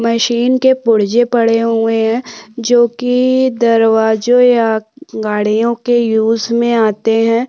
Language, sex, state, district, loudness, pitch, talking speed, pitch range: Hindi, female, Chhattisgarh, Korba, -13 LUFS, 230 Hz, 120 wpm, 225-240 Hz